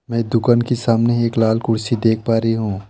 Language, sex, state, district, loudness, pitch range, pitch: Hindi, male, West Bengal, Alipurduar, -17 LUFS, 115-120 Hz, 115 Hz